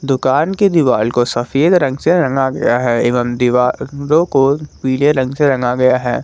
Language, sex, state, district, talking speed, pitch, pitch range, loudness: Hindi, male, Jharkhand, Garhwa, 185 wpm, 135 Hz, 125-145 Hz, -14 LUFS